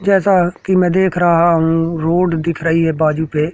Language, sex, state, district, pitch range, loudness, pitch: Hindi, male, Madhya Pradesh, Katni, 165-180 Hz, -14 LUFS, 170 Hz